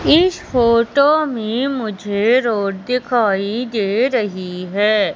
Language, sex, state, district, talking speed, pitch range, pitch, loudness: Hindi, female, Madhya Pradesh, Katni, 105 wpm, 205-255 Hz, 230 Hz, -17 LUFS